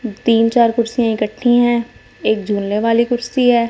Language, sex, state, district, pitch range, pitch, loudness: Hindi, female, Punjab, Fazilka, 220-240 Hz, 235 Hz, -16 LUFS